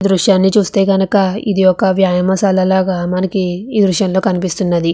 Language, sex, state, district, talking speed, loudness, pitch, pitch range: Telugu, female, Andhra Pradesh, Visakhapatnam, 145 wpm, -14 LUFS, 190 Hz, 185-195 Hz